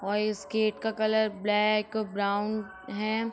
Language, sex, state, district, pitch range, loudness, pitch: Hindi, female, Jharkhand, Sahebganj, 205-220 Hz, -29 LUFS, 215 Hz